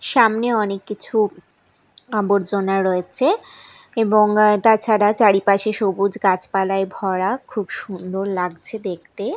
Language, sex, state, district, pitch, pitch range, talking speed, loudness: Bengali, female, Odisha, Malkangiri, 200 Hz, 195-215 Hz, 95 wpm, -19 LUFS